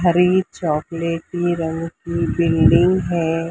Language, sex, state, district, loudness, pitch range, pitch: Hindi, female, Maharashtra, Mumbai Suburban, -19 LUFS, 165-175 Hz, 170 Hz